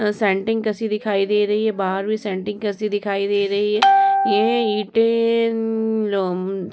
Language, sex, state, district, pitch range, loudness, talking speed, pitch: Hindi, female, Uttar Pradesh, Muzaffarnagar, 200-225 Hz, -19 LUFS, 150 wpm, 210 Hz